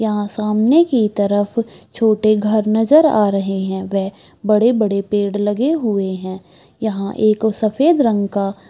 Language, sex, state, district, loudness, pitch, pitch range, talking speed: Hindi, female, Bihar, Bhagalpur, -16 LUFS, 210 Hz, 200-220 Hz, 170 wpm